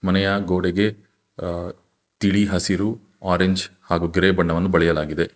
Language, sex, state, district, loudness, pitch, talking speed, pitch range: Kannada, male, Karnataka, Bangalore, -21 LUFS, 95 Hz, 100 wpm, 90-100 Hz